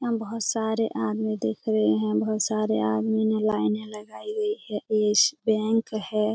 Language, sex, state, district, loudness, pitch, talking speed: Hindi, female, Bihar, Jamui, -25 LUFS, 215 Hz, 180 wpm